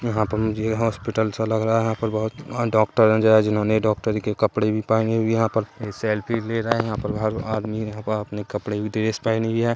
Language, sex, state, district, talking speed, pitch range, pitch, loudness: Hindi, male, Chhattisgarh, Kabirdham, 245 wpm, 110-115 Hz, 110 Hz, -22 LUFS